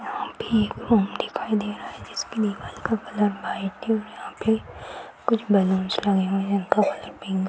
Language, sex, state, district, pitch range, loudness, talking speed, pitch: Hindi, female, Bihar, Bhagalpur, 195-220 Hz, -25 LUFS, 210 wpm, 210 Hz